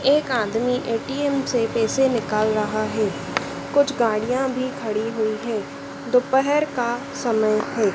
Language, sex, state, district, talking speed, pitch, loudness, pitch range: Hindi, female, Madhya Pradesh, Dhar, 135 wpm, 235 Hz, -22 LUFS, 215-265 Hz